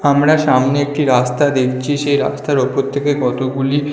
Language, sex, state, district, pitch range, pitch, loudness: Bengali, male, West Bengal, North 24 Parganas, 130-145 Hz, 140 Hz, -15 LUFS